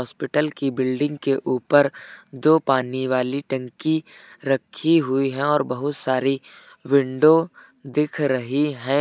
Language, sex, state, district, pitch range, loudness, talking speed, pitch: Hindi, male, Uttar Pradesh, Lucknow, 130-150 Hz, -21 LUFS, 125 wpm, 140 Hz